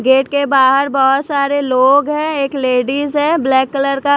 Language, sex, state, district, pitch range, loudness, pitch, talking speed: Hindi, female, Chhattisgarh, Raipur, 265-285 Hz, -14 LUFS, 275 Hz, 185 wpm